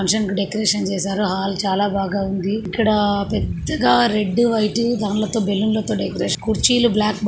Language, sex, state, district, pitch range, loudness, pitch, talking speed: Telugu, female, Andhra Pradesh, Krishna, 195-215 Hz, -19 LUFS, 205 Hz, 130 wpm